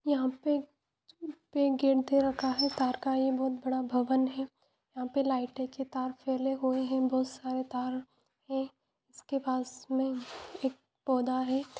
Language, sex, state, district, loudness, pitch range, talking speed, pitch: Hindi, female, Jharkhand, Jamtara, -32 LUFS, 255-275 Hz, 170 wpm, 265 Hz